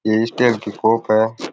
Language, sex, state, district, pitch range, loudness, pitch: Rajasthani, male, Rajasthan, Nagaur, 110-115 Hz, -17 LUFS, 110 Hz